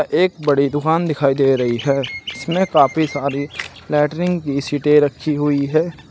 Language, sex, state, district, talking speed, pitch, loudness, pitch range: Hindi, male, Uttar Pradesh, Shamli, 155 wpm, 145 Hz, -18 LUFS, 140-155 Hz